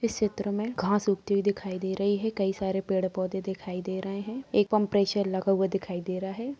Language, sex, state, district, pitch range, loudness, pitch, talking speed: Hindi, female, Bihar, Purnia, 190-205 Hz, -29 LUFS, 195 Hz, 225 wpm